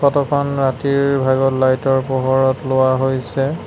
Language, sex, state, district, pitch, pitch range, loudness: Assamese, male, Assam, Sonitpur, 135 Hz, 130-140 Hz, -16 LUFS